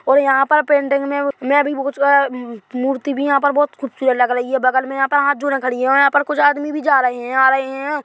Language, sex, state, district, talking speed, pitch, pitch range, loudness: Hindi, male, Chhattisgarh, Bilaspur, 300 wpm, 275 Hz, 265-285 Hz, -16 LUFS